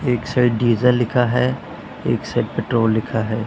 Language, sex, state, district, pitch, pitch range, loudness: Hindi, male, Punjab, Pathankot, 120 Hz, 115-125 Hz, -19 LUFS